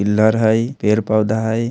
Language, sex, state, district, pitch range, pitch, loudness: Bajjika, male, Bihar, Vaishali, 105-110 Hz, 110 Hz, -16 LUFS